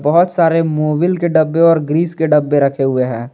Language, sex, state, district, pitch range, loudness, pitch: Hindi, male, Jharkhand, Garhwa, 145-165 Hz, -14 LUFS, 155 Hz